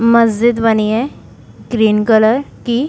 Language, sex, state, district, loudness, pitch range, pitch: Hindi, female, Bihar, Saran, -13 LUFS, 220-240 Hz, 230 Hz